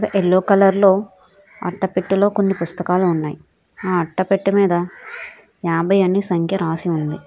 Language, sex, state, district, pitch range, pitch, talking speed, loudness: Telugu, female, Telangana, Hyderabad, 175-195 Hz, 185 Hz, 125 wpm, -18 LUFS